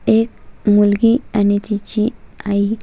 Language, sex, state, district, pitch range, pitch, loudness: Marathi, female, Maharashtra, Solapur, 205-225 Hz, 210 Hz, -17 LUFS